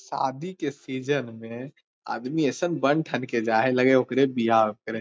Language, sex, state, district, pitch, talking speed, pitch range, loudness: Magahi, male, Bihar, Lakhisarai, 130 Hz, 180 wpm, 115-140 Hz, -25 LUFS